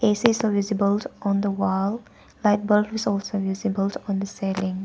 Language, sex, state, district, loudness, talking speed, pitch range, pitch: English, female, Arunachal Pradesh, Papum Pare, -24 LUFS, 160 wpm, 195-210 Hz, 200 Hz